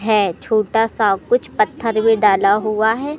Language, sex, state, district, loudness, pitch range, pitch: Hindi, male, Madhya Pradesh, Katni, -16 LUFS, 210-225 Hz, 220 Hz